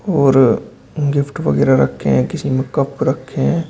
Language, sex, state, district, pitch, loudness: Hindi, male, Uttar Pradesh, Shamli, 135 Hz, -16 LUFS